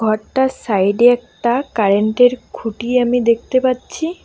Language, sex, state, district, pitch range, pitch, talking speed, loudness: Bengali, female, West Bengal, Alipurduar, 220-255 Hz, 245 Hz, 115 wpm, -16 LUFS